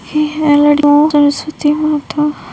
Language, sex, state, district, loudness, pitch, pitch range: Hindi, female, Bihar, Begusarai, -12 LUFS, 295 Hz, 290-305 Hz